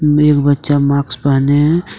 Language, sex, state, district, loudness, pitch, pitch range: Hindi, male, Jharkhand, Deoghar, -13 LUFS, 145 Hz, 140-150 Hz